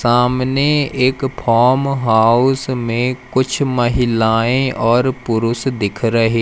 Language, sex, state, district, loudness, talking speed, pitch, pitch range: Hindi, male, Madhya Pradesh, Umaria, -15 LUFS, 105 wpm, 125 Hz, 115-130 Hz